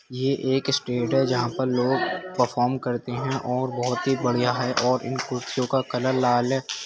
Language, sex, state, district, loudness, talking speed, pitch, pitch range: Hindi, male, Uttar Pradesh, Jyotiba Phule Nagar, -24 LUFS, 175 wpm, 125 Hz, 125-130 Hz